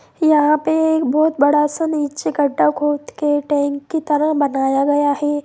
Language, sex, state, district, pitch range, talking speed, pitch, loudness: Hindi, female, Bihar, Sitamarhi, 285-310 Hz, 165 wpm, 295 Hz, -17 LUFS